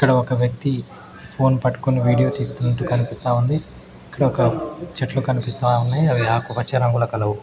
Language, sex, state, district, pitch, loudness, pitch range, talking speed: Telugu, male, Telangana, Mahabubabad, 125 Hz, -20 LUFS, 120-135 Hz, 135 wpm